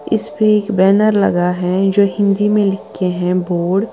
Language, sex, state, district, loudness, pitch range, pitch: Hindi, female, Uttar Pradesh, Lalitpur, -15 LUFS, 180-210 Hz, 195 Hz